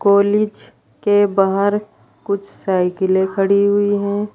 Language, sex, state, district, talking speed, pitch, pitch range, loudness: Hindi, female, Uttar Pradesh, Saharanpur, 110 wpm, 200 Hz, 195-205 Hz, -17 LUFS